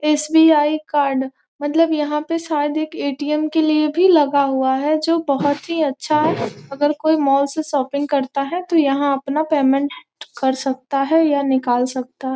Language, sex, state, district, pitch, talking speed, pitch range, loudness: Hindi, female, Bihar, Gopalganj, 295 Hz, 180 wpm, 275-310 Hz, -18 LUFS